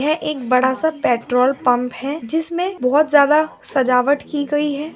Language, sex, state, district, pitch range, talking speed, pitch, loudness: Angika, female, Bihar, Madhepura, 255-305 Hz, 155 wpm, 285 Hz, -18 LUFS